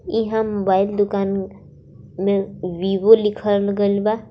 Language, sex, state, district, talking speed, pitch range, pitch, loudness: Bhojpuri, female, Jharkhand, Palamu, 110 wpm, 195-210 Hz, 200 Hz, -19 LUFS